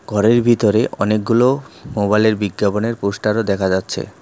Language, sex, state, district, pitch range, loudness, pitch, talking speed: Bengali, male, West Bengal, Cooch Behar, 105-115 Hz, -17 LUFS, 105 Hz, 115 wpm